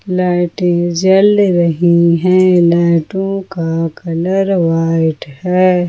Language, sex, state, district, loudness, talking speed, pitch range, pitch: Hindi, female, Jharkhand, Ranchi, -13 LUFS, 90 wpm, 170-185 Hz, 175 Hz